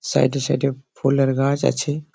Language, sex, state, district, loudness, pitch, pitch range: Bengali, male, West Bengal, Malda, -20 LUFS, 135 Hz, 135-145 Hz